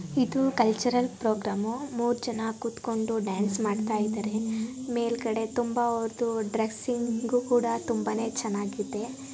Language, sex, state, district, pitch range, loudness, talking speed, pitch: Kannada, female, Karnataka, Dakshina Kannada, 220-240 Hz, -29 LUFS, 95 wpm, 230 Hz